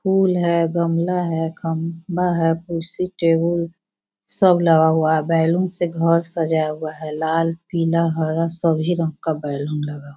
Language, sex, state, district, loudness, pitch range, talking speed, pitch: Hindi, female, Bihar, Sitamarhi, -20 LUFS, 160-170 Hz, 160 wpm, 165 Hz